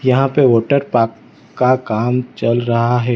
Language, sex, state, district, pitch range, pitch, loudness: Hindi, male, Gujarat, Valsad, 115-130 Hz, 125 Hz, -15 LUFS